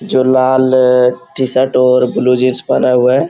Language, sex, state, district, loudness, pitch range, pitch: Hindi, male, Uttar Pradesh, Muzaffarnagar, -12 LUFS, 125-130 Hz, 130 Hz